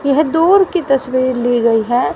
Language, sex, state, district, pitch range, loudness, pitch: Hindi, female, Haryana, Rohtak, 245-320 Hz, -14 LUFS, 265 Hz